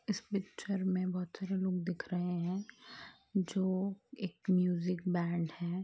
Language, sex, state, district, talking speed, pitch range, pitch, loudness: Hindi, female, Andhra Pradesh, Guntur, 135 wpm, 180-195 Hz, 185 Hz, -36 LUFS